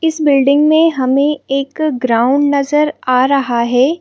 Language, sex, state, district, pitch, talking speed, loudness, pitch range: Hindi, female, Madhya Pradesh, Bhopal, 280 Hz, 150 wpm, -13 LUFS, 255-300 Hz